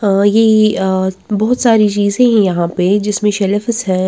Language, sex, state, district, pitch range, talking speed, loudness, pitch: Hindi, female, Bihar, West Champaran, 190-215 Hz, 175 wpm, -13 LUFS, 205 Hz